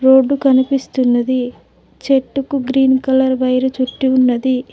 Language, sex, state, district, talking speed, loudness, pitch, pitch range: Telugu, female, Telangana, Mahabubabad, 100 wpm, -15 LUFS, 260 Hz, 255-270 Hz